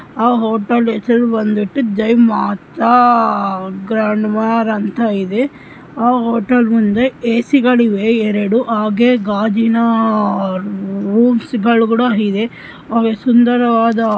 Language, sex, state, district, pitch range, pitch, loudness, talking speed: Kannada, female, Karnataka, Shimoga, 210-235 Hz, 225 Hz, -14 LUFS, 100 wpm